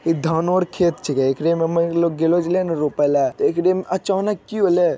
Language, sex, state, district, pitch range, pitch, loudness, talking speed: Magahi, male, Bihar, Jamui, 165-185 Hz, 170 Hz, -19 LUFS, 155 wpm